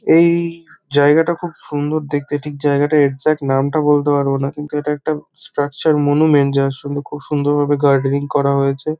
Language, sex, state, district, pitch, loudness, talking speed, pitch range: Bengali, male, West Bengal, Kolkata, 145 Hz, -17 LUFS, 165 wpm, 140-155 Hz